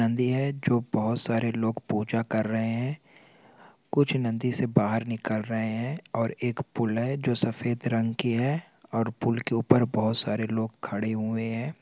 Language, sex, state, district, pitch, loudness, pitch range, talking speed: Hindi, male, Uttarakhand, Tehri Garhwal, 115 Hz, -28 LUFS, 110-125 Hz, 185 wpm